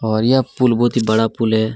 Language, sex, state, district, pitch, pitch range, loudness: Hindi, male, Chhattisgarh, Kabirdham, 115 Hz, 110-120 Hz, -16 LUFS